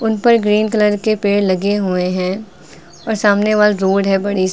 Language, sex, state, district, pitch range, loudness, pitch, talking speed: Hindi, female, Uttar Pradesh, Lucknow, 185-215 Hz, -15 LUFS, 205 Hz, 210 wpm